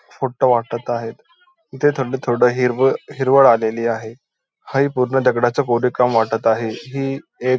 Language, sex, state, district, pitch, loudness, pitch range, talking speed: Marathi, male, Maharashtra, Dhule, 125 Hz, -18 LUFS, 120-135 Hz, 140 wpm